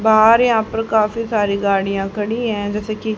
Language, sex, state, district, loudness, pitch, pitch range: Hindi, female, Haryana, Charkhi Dadri, -17 LUFS, 215 Hz, 205-225 Hz